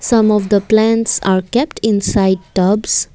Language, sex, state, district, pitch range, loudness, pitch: English, female, Assam, Kamrup Metropolitan, 195-225 Hz, -14 LUFS, 210 Hz